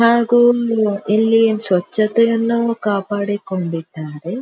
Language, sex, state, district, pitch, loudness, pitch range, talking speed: Kannada, female, Karnataka, Dharwad, 215 Hz, -16 LUFS, 195-230 Hz, 70 wpm